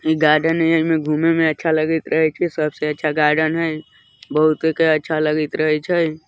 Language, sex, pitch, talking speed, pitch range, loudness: Bajjika, male, 155 Hz, 200 wpm, 155-160 Hz, -18 LUFS